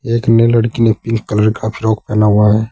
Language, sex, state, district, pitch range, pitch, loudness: Hindi, male, Uttar Pradesh, Saharanpur, 105-115 Hz, 110 Hz, -13 LUFS